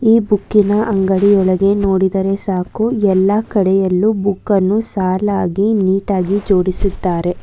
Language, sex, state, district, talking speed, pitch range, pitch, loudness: Kannada, female, Karnataka, Bangalore, 95 wpm, 190-205 Hz, 195 Hz, -15 LUFS